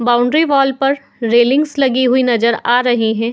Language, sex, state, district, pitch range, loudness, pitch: Hindi, female, Uttar Pradesh, Muzaffarnagar, 240-275 Hz, -14 LUFS, 250 Hz